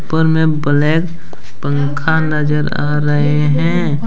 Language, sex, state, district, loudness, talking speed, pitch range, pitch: Hindi, male, Jharkhand, Deoghar, -15 LUFS, 120 wpm, 145-160 Hz, 150 Hz